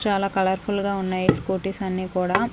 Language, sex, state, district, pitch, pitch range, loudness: Telugu, female, Andhra Pradesh, Manyam, 190 Hz, 185-195 Hz, -24 LUFS